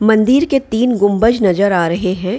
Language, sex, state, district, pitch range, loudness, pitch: Hindi, female, Bihar, Gaya, 190-240 Hz, -13 LUFS, 215 Hz